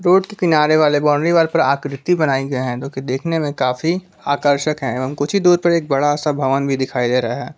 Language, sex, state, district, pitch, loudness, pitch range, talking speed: Hindi, male, Jharkhand, Palamu, 145 Hz, -17 LUFS, 135-165 Hz, 235 wpm